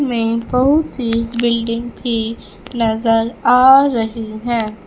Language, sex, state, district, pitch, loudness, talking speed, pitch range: Hindi, female, Punjab, Fazilka, 230 Hz, -16 LUFS, 110 wpm, 225-245 Hz